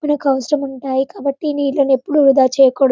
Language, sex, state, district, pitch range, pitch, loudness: Telugu, female, Telangana, Karimnagar, 265-290 Hz, 275 Hz, -16 LUFS